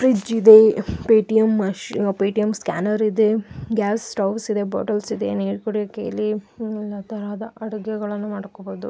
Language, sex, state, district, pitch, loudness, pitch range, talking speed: Kannada, female, Karnataka, Shimoga, 215 Hz, -20 LUFS, 205-220 Hz, 150 wpm